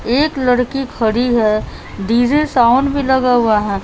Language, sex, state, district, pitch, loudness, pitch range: Hindi, female, Bihar, West Champaran, 245 Hz, -15 LUFS, 225-270 Hz